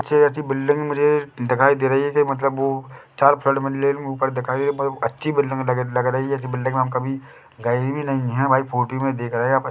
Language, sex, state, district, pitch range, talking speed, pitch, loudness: Hindi, male, Chhattisgarh, Bilaspur, 130-140 Hz, 230 wpm, 135 Hz, -21 LUFS